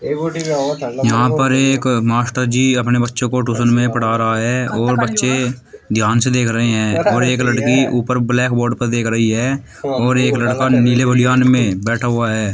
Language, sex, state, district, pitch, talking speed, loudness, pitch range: Hindi, male, Uttar Pradesh, Shamli, 125 Hz, 180 wpm, -15 LUFS, 115-125 Hz